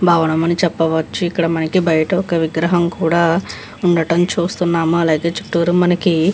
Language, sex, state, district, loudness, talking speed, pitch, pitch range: Telugu, female, Andhra Pradesh, Visakhapatnam, -16 LUFS, 140 wpm, 170 Hz, 165-175 Hz